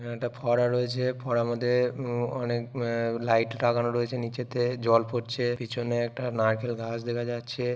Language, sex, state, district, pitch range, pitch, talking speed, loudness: Bengali, male, West Bengal, Purulia, 120-125 Hz, 120 Hz, 155 wpm, -28 LUFS